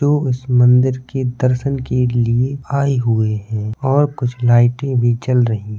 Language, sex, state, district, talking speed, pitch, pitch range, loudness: Hindi, male, Uttar Pradesh, Jalaun, 175 wpm, 125 Hz, 120-135 Hz, -16 LUFS